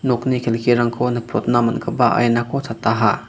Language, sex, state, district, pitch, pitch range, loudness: Garo, male, Meghalaya, West Garo Hills, 120 Hz, 115-125 Hz, -18 LUFS